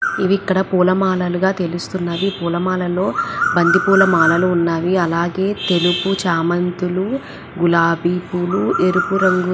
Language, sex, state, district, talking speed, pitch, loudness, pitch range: Telugu, female, Andhra Pradesh, Visakhapatnam, 120 wpm, 180 Hz, -17 LUFS, 175-190 Hz